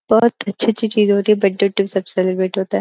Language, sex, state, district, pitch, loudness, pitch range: Hindi, female, Uttar Pradesh, Gorakhpur, 200 Hz, -17 LUFS, 195-220 Hz